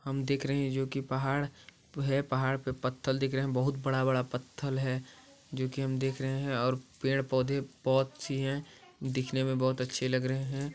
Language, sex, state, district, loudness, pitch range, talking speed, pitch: Hindi, male, Chhattisgarh, Balrampur, -32 LUFS, 130-135 Hz, 195 wpm, 135 Hz